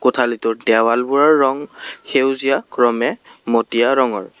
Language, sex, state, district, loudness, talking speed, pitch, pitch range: Assamese, male, Assam, Kamrup Metropolitan, -16 LUFS, 95 wpm, 120 Hz, 115-135 Hz